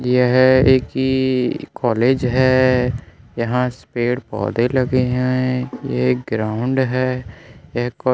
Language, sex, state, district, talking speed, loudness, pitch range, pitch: Hindi, male, Bihar, Kishanganj, 105 wpm, -18 LUFS, 120-130 Hz, 125 Hz